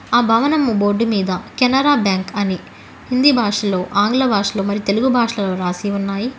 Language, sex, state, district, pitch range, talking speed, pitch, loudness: Telugu, female, Telangana, Hyderabad, 200-250 Hz, 150 wpm, 210 Hz, -17 LUFS